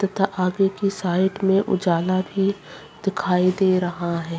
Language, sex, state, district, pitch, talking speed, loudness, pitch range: Hindi, female, Bihar, Bhagalpur, 185 Hz, 150 wpm, -21 LUFS, 180-195 Hz